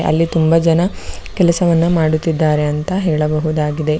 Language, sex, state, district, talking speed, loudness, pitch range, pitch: Kannada, female, Karnataka, Chamarajanagar, 105 wpm, -15 LUFS, 155-170 Hz, 160 Hz